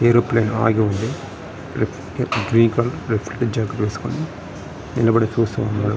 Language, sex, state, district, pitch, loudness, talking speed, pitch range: Telugu, male, Andhra Pradesh, Srikakulam, 115 Hz, -20 LUFS, 80 wpm, 110-120 Hz